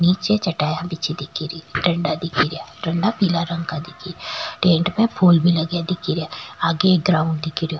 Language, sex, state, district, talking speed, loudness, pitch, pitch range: Rajasthani, female, Rajasthan, Churu, 175 wpm, -20 LUFS, 170 Hz, 160-180 Hz